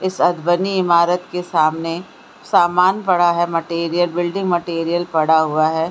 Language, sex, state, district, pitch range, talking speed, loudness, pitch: Hindi, female, Bihar, Supaul, 165-180 Hz, 150 wpm, -17 LUFS, 175 Hz